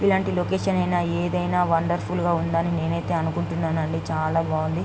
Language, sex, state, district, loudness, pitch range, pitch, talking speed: Telugu, female, Andhra Pradesh, Guntur, -24 LUFS, 160-175 Hz, 165 Hz, 150 wpm